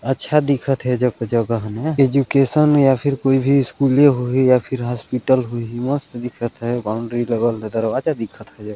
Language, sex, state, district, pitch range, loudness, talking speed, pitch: Chhattisgarhi, male, Chhattisgarh, Balrampur, 115-135 Hz, -18 LUFS, 200 wpm, 125 Hz